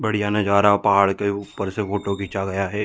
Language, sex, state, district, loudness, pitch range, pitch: Hindi, male, Chhattisgarh, Bilaspur, -21 LUFS, 100-105 Hz, 100 Hz